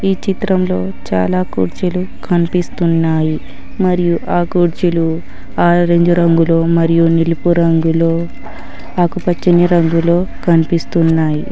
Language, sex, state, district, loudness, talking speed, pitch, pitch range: Telugu, female, Telangana, Hyderabad, -14 LUFS, 85 wpm, 170 Hz, 165-175 Hz